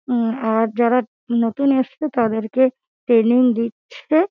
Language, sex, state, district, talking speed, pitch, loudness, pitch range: Bengali, female, West Bengal, Dakshin Dinajpur, 110 wpm, 240 Hz, -19 LUFS, 230-260 Hz